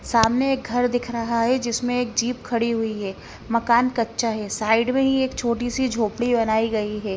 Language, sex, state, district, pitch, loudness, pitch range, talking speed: Hindi, female, Himachal Pradesh, Shimla, 235 Hz, -22 LUFS, 225-245 Hz, 210 wpm